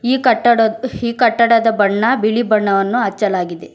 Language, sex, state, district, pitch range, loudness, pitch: Kannada, female, Karnataka, Bangalore, 205-240 Hz, -15 LUFS, 225 Hz